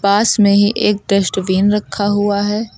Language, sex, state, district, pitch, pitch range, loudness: Hindi, female, Uttar Pradesh, Lucknow, 205 Hz, 200-210 Hz, -14 LUFS